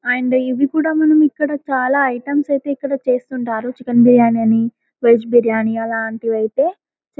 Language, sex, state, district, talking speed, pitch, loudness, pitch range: Telugu, female, Telangana, Karimnagar, 150 wpm, 250 Hz, -16 LUFS, 230-280 Hz